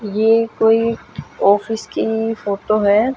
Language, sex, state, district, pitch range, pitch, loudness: Hindi, female, Haryana, Jhajjar, 205-225 Hz, 220 Hz, -17 LUFS